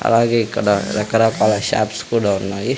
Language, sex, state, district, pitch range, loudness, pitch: Telugu, male, Andhra Pradesh, Sri Satya Sai, 100-115 Hz, -17 LUFS, 115 Hz